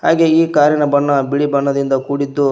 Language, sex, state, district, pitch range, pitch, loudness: Kannada, male, Karnataka, Koppal, 140-150 Hz, 145 Hz, -14 LUFS